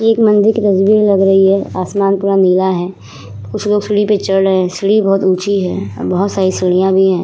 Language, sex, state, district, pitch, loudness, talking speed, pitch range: Hindi, female, Uttar Pradesh, Muzaffarnagar, 195 Hz, -13 LUFS, 225 wpm, 185-205 Hz